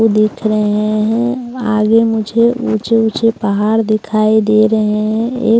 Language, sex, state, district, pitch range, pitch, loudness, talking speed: Hindi, female, Bihar, Katihar, 215-225 Hz, 220 Hz, -14 LUFS, 150 wpm